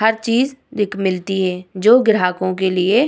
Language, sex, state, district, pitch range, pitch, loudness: Hindi, female, Bihar, Vaishali, 185-225 Hz, 195 Hz, -17 LUFS